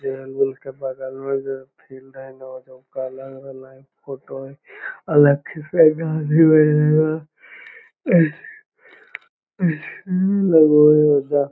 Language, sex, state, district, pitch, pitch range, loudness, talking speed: Magahi, male, Bihar, Lakhisarai, 145 Hz, 135-160 Hz, -18 LUFS, 80 wpm